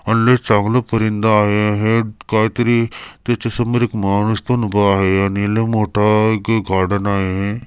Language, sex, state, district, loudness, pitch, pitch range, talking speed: Marathi, male, Maharashtra, Chandrapur, -16 LUFS, 110 Hz, 100-115 Hz, 155 wpm